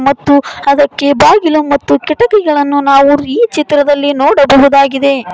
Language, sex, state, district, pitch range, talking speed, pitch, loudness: Kannada, female, Karnataka, Koppal, 275-295 Hz, 100 wpm, 285 Hz, -9 LUFS